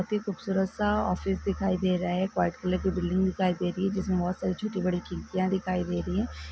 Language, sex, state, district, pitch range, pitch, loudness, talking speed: Hindi, female, Karnataka, Belgaum, 180-190 Hz, 185 Hz, -29 LUFS, 240 wpm